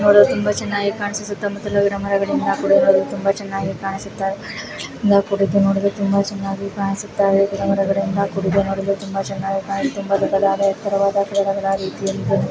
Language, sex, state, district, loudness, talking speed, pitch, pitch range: Kannada, female, Karnataka, Mysore, -19 LUFS, 85 wpm, 200 Hz, 195-200 Hz